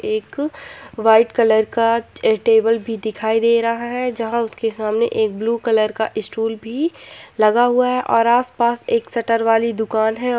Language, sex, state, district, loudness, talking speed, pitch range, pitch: Hindi, female, Bihar, Gopalganj, -18 LUFS, 165 wpm, 220-240 Hz, 230 Hz